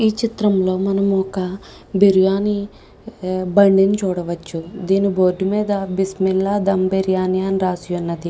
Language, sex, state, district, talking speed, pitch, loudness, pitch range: Telugu, female, Andhra Pradesh, Krishna, 115 wpm, 190 Hz, -18 LUFS, 185-200 Hz